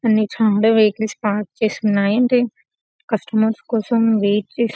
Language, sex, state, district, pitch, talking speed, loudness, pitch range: Telugu, female, Telangana, Karimnagar, 220 Hz, 140 wpm, -18 LUFS, 210-225 Hz